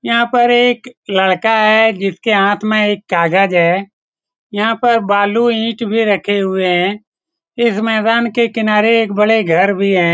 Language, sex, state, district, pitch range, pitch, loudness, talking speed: Hindi, male, Bihar, Saran, 195-230 Hz, 215 Hz, -13 LUFS, 165 wpm